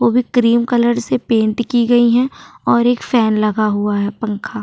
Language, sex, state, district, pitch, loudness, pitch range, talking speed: Hindi, female, Maharashtra, Chandrapur, 235 Hz, -15 LUFS, 215-245 Hz, 205 wpm